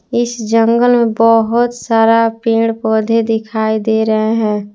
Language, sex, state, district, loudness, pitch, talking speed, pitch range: Hindi, female, Jharkhand, Palamu, -13 LUFS, 225 Hz, 125 wpm, 220-230 Hz